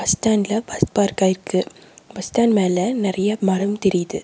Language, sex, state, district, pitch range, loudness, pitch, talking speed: Tamil, female, Tamil Nadu, Nilgiris, 185-215 Hz, -20 LUFS, 200 Hz, 140 wpm